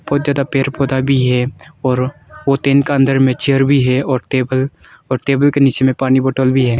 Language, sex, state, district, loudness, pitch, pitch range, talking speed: Hindi, male, Arunachal Pradesh, Longding, -15 LUFS, 135 Hz, 130-140 Hz, 230 wpm